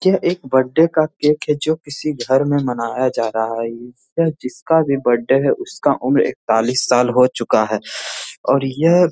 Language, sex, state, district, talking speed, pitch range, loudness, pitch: Hindi, male, Bihar, Jamui, 190 wpm, 125-155 Hz, -17 LUFS, 135 Hz